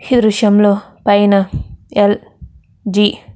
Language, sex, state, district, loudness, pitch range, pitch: Telugu, female, Andhra Pradesh, Krishna, -13 LUFS, 200-210 Hz, 205 Hz